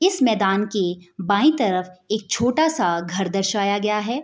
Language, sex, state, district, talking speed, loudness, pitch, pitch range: Hindi, female, Bihar, Bhagalpur, 155 wpm, -21 LUFS, 205 Hz, 190-240 Hz